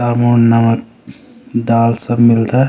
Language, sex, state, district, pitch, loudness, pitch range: Garhwali, male, Uttarakhand, Uttarkashi, 115 Hz, -13 LUFS, 115-120 Hz